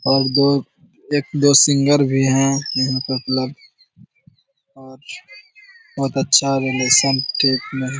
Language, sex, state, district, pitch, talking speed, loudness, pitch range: Hindi, male, Bihar, Jahanabad, 135 Hz, 105 wpm, -17 LUFS, 130-145 Hz